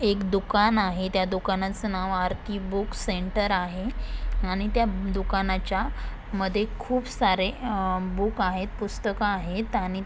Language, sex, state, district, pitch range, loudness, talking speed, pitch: Marathi, female, Maharashtra, Aurangabad, 190-210 Hz, -27 LUFS, 130 wpm, 195 Hz